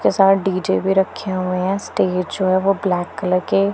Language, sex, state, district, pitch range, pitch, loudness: Hindi, female, Punjab, Pathankot, 185-195 Hz, 190 Hz, -18 LUFS